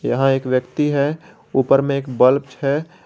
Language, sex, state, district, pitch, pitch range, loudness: Hindi, male, Jharkhand, Garhwa, 140 Hz, 135-145 Hz, -18 LUFS